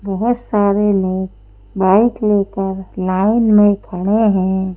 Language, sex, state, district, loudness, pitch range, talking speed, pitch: Hindi, female, Madhya Pradesh, Bhopal, -15 LUFS, 190-210 Hz, 115 wpm, 195 Hz